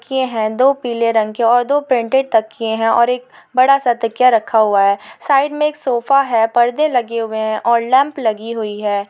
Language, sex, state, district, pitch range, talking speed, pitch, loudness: Hindi, female, Uttar Pradesh, Etah, 220-260 Hz, 215 wpm, 235 Hz, -15 LUFS